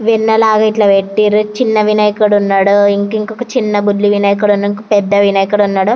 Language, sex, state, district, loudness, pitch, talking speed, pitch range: Telugu, female, Andhra Pradesh, Anantapur, -11 LUFS, 205 Hz, 150 wpm, 200-215 Hz